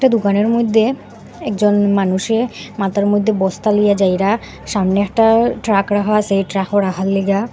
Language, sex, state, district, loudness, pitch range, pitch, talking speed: Bengali, female, Assam, Hailakandi, -16 LUFS, 195-220 Hz, 205 Hz, 145 wpm